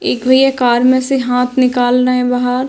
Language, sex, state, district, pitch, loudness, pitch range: Hindi, female, Uttar Pradesh, Hamirpur, 250 Hz, -13 LUFS, 250-255 Hz